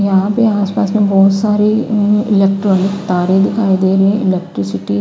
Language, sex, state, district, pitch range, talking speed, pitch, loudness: Hindi, female, Himachal Pradesh, Shimla, 190-210 Hz, 180 wpm, 195 Hz, -13 LUFS